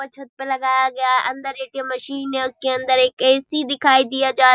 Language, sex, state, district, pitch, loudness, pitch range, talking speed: Hindi, female, Bihar, Saharsa, 265 Hz, -18 LUFS, 260-270 Hz, 250 wpm